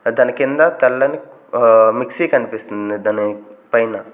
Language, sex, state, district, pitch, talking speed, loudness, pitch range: Telugu, male, Andhra Pradesh, Manyam, 110 Hz, 115 wpm, -16 LUFS, 105-115 Hz